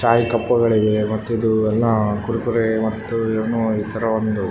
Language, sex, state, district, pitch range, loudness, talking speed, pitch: Kannada, male, Karnataka, Raichur, 110-115 Hz, -19 LUFS, 160 wpm, 110 Hz